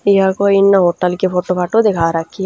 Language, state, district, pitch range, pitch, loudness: Haryanvi, Haryana, Rohtak, 180-200 Hz, 190 Hz, -14 LUFS